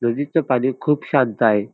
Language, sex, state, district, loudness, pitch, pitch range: Marathi, male, Maharashtra, Dhule, -19 LUFS, 130 Hz, 115-145 Hz